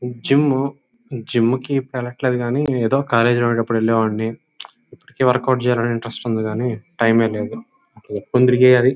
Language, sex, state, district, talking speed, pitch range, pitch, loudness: Telugu, male, Andhra Pradesh, Chittoor, 145 wpm, 115-130 Hz, 125 Hz, -18 LUFS